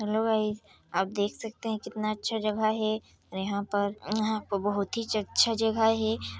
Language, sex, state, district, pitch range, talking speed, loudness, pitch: Hindi, female, Chhattisgarh, Sarguja, 205-220 Hz, 180 wpm, -29 LUFS, 215 Hz